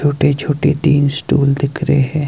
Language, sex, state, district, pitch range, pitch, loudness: Hindi, male, Himachal Pradesh, Shimla, 140-150 Hz, 145 Hz, -15 LUFS